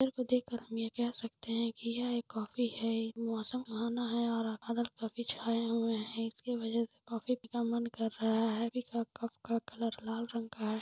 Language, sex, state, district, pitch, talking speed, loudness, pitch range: Hindi, female, Jharkhand, Sahebganj, 230 Hz, 225 wpm, -36 LUFS, 225-235 Hz